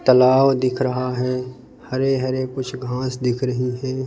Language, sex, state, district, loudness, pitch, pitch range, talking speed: Hindi, male, Madhya Pradesh, Bhopal, -20 LUFS, 130 Hz, 125-130 Hz, 160 wpm